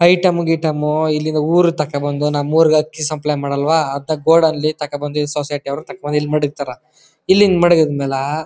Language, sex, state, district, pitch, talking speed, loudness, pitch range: Kannada, male, Karnataka, Chamarajanagar, 150 Hz, 155 wpm, -16 LUFS, 145-160 Hz